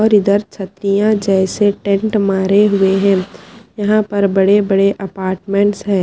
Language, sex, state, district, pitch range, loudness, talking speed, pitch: Hindi, female, Haryana, Charkhi Dadri, 195-205 Hz, -14 LUFS, 140 wpm, 200 Hz